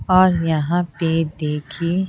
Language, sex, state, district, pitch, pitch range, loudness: Hindi, female, Bihar, Patna, 165 Hz, 155-180 Hz, -20 LUFS